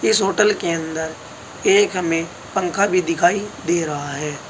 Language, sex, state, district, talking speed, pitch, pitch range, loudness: Hindi, male, Uttar Pradesh, Saharanpur, 160 wpm, 170 Hz, 160-195 Hz, -19 LUFS